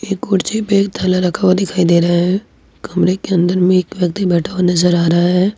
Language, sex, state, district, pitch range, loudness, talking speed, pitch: Hindi, female, Jharkhand, Ranchi, 175-195 Hz, -15 LUFS, 245 wpm, 185 Hz